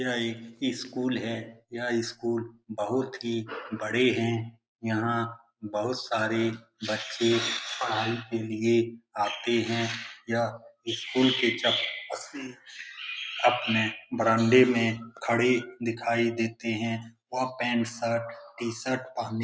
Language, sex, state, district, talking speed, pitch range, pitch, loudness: Hindi, male, Bihar, Lakhisarai, 110 wpm, 115-120 Hz, 115 Hz, -28 LUFS